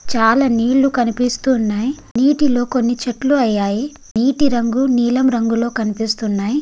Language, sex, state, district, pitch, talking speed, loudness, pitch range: Telugu, female, Andhra Pradesh, Guntur, 245 Hz, 110 wpm, -16 LUFS, 230-265 Hz